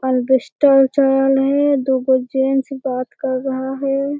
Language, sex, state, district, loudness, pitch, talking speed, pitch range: Hindi, female, Bihar, Jamui, -17 LUFS, 270 Hz, 130 wpm, 260-275 Hz